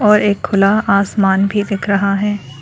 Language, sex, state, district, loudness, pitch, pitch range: Hindi, female, Arunachal Pradesh, Lower Dibang Valley, -14 LUFS, 200 Hz, 195-205 Hz